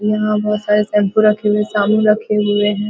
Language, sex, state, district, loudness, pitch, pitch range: Hindi, female, Bihar, Vaishali, -15 LUFS, 210 Hz, 210-215 Hz